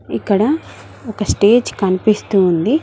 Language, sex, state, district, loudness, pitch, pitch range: Telugu, female, Telangana, Mahabubabad, -15 LUFS, 210 Hz, 195-240 Hz